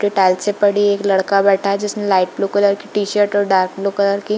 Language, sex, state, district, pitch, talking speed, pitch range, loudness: Hindi, female, Bihar, Purnia, 200 Hz, 220 wpm, 195-205 Hz, -16 LUFS